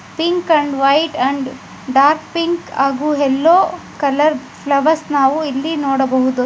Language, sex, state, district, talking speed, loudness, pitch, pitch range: Kannada, female, Karnataka, Bijapur, 110 wpm, -15 LUFS, 285 Hz, 275-315 Hz